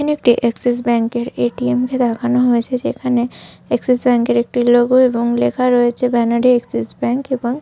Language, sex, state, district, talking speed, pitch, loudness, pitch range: Bengali, female, Jharkhand, Sahebganj, 180 wpm, 245 Hz, -16 LUFS, 240-250 Hz